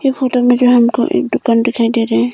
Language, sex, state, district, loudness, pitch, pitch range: Hindi, female, Arunachal Pradesh, Longding, -13 LUFS, 240 Hz, 230-250 Hz